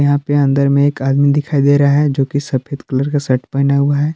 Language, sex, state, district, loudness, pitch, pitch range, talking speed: Hindi, male, Jharkhand, Palamu, -14 LUFS, 140 Hz, 140-145 Hz, 275 wpm